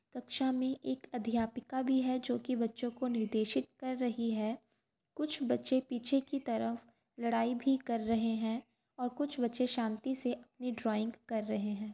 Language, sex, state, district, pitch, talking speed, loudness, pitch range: Hindi, female, Uttar Pradesh, Varanasi, 240 Hz, 165 wpm, -36 LUFS, 225-260 Hz